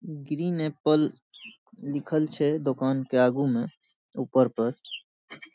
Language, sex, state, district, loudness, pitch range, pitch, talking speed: Maithili, male, Bihar, Saharsa, -26 LUFS, 130-155 Hz, 145 Hz, 110 wpm